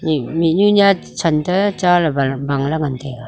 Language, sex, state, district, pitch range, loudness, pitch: Wancho, female, Arunachal Pradesh, Longding, 140-180 Hz, -16 LUFS, 160 Hz